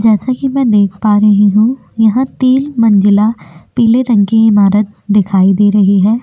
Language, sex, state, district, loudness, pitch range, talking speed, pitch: Hindi, female, Chhattisgarh, Korba, -10 LUFS, 205-235 Hz, 175 wpm, 215 Hz